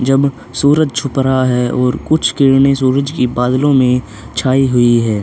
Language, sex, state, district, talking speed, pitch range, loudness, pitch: Hindi, male, Chhattisgarh, Korba, 170 wpm, 125-135 Hz, -13 LUFS, 130 Hz